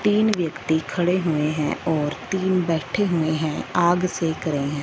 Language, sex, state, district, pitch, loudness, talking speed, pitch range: Hindi, female, Punjab, Fazilka, 165 Hz, -22 LUFS, 175 wpm, 155-180 Hz